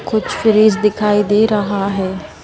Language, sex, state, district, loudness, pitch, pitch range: Hindi, female, Madhya Pradesh, Bhopal, -15 LUFS, 210 Hz, 195-215 Hz